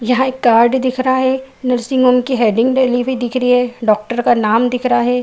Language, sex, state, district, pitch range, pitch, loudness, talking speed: Hindi, female, Bihar, Saharsa, 240-260 Hz, 250 Hz, -14 LUFS, 240 wpm